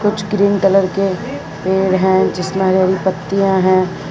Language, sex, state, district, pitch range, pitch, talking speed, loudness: Hindi, female, Gujarat, Valsad, 185-195 Hz, 190 Hz, 160 wpm, -15 LUFS